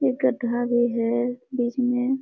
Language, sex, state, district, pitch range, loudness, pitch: Hindi, female, Bihar, Supaul, 240-255 Hz, -24 LUFS, 245 Hz